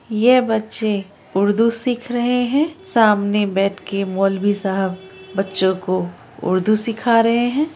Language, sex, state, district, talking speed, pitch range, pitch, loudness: Hindi, female, Bihar, Araria, 140 wpm, 195-235 Hz, 210 Hz, -18 LUFS